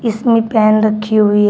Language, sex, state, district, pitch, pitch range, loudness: Hindi, female, Uttar Pradesh, Shamli, 215 Hz, 215-225 Hz, -13 LUFS